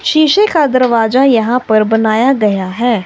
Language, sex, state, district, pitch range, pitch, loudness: Hindi, male, Himachal Pradesh, Shimla, 220-270 Hz, 240 Hz, -11 LUFS